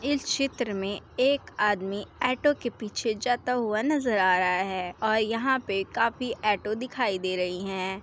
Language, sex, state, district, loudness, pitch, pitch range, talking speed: Hindi, female, Uttar Pradesh, Jalaun, -27 LUFS, 220 Hz, 195-250 Hz, 170 wpm